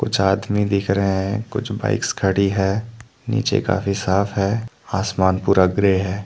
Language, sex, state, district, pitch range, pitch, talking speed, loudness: Hindi, male, Jharkhand, Deoghar, 95-110 Hz, 100 Hz, 165 wpm, -20 LUFS